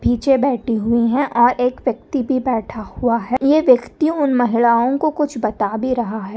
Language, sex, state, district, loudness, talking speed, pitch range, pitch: Hindi, female, Maharashtra, Nagpur, -17 LUFS, 195 wpm, 235-270 Hz, 245 Hz